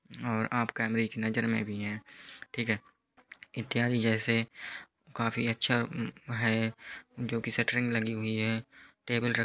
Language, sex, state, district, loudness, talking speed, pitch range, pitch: Hindi, male, Uttar Pradesh, Hamirpur, -31 LUFS, 160 wpm, 110-120 Hz, 115 Hz